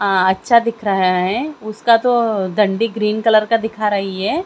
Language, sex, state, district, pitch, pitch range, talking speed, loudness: Hindi, female, Haryana, Jhajjar, 215 Hz, 195-230 Hz, 200 wpm, -16 LUFS